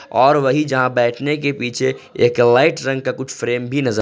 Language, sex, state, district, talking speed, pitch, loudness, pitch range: Hindi, male, Jharkhand, Ranchi, 210 wpm, 130 Hz, -17 LUFS, 120-140 Hz